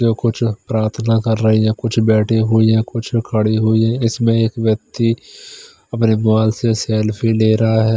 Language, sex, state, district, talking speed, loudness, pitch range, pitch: Hindi, male, Chandigarh, Chandigarh, 180 wpm, -16 LUFS, 110-115 Hz, 110 Hz